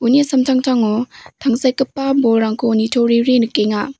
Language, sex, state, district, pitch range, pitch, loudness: Garo, female, Meghalaya, West Garo Hills, 225-265 Hz, 250 Hz, -16 LUFS